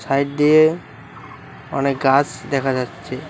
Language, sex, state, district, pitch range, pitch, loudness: Bengali, male, West Bengal, Cooch Behar, 135-145 Hz, 135 Hz, -18 LUFS